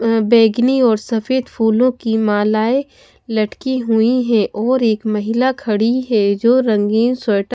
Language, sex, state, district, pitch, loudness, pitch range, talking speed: Hindi, female, Odisha, Khordha, 230 Hz, -16 LUFS, 215-250 Hz, 150 wpm